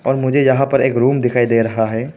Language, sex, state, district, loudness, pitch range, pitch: Hindi, male, Arunachal Pradesh, Papum Pare, -15 LUFS, 115-135 Hz, 130 Hz